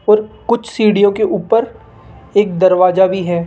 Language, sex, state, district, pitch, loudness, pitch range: Hindi, female, Rajasthan, Jaipur, 205 Hz, -14 LUFS, 185-215 Hz